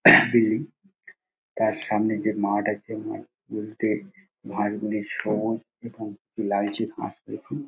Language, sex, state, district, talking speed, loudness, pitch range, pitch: Bengali, male, West Bengal, Dakshin Dinajpur, 125 wpm, -26 LUFS, 105-140 Hz, 110 Hz